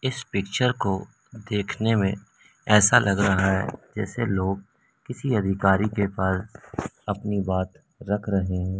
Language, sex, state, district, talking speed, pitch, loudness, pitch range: Hindi, male, Madhya Pradesh, Umaria, 135 wpm, 100 Hz, -24 LUFS, 95-110 Hz